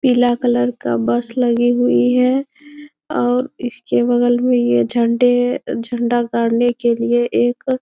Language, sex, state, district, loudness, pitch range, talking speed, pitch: Hindi, female, Bihar, Bhagalpur, -16 LUFS, 235-250 Hz, 145 wpm, 245 Hz